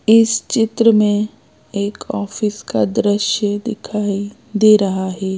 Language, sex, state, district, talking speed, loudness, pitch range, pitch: Hindi, female, Madhya Pradesh, Bhopal, 125 wpm, -17 LUFS, 205-220 Hz, 210 Hz